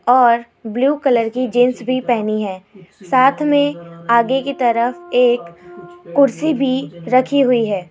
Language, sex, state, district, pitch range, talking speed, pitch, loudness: Hindi, female, Rajasthan, Jaipur, 205-260 Hz, 145 wpm, 245 Hz, -16 LUFS